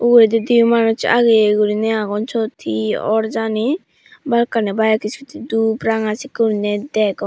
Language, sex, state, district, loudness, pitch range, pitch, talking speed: Chakma, female, Tripura, Dhalai, -17 LUFS, 215-235 Hz, 225 Hz, 150 wpm